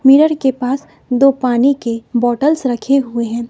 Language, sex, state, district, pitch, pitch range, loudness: Hindi, female, Bihar, West Champaran, 260 Hz, 240-275 Hz, -15 LUFS